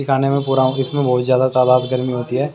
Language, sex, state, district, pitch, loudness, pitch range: Hindi, male, Haryana, Jhajjar, 130 Hz, -17 LUFS, 125-135 Hz